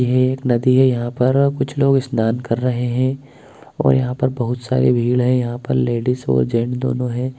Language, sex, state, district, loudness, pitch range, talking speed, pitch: Bhojpuri, male, Bihar, Saran, -18 LUFS, 120-130 Hz, 210 wpm, 125 Hz